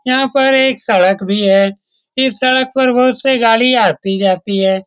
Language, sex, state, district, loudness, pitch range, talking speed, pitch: Hindi, male, Bihar, Saran, -12 LUFS, 195-260 Hz, 170 wpm, 245 Hz